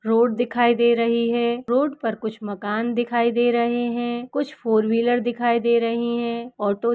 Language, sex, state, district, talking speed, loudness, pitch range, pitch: Hindi, female, Uttar Pradesh, Etah, 190 wpm, -22 LUFS, 230-240 Hz, 235 Hz